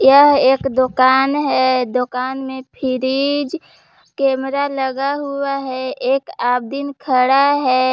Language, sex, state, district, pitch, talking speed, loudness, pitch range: Hindi, female, Jharkhand, Palamu, 265 Hz, 115 wpm, -17 LUFS, 260-280 Hz